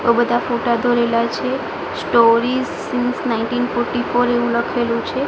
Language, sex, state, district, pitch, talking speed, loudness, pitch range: Gujarati, female, Gujarat, Gandhinagar, 240 Hz, 160 wpm, -18 LUFS, 235-245 Hz